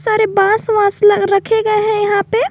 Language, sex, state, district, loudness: Hindi, female, Jharkhand, Garhwa, -13 LUFS